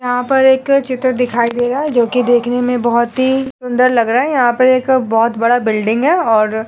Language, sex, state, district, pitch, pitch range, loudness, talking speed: Hindi, female, Uttar Pradesh, Hamirpur, 245 Hz, 235-260 Hz, -14 LUFS, 240 wpm